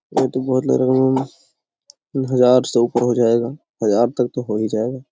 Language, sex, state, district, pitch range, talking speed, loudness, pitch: Hindi, male, Bihar, Lakhisarai, 120-130 Hz, 175 wpm, -18 LUFS, 125 Hz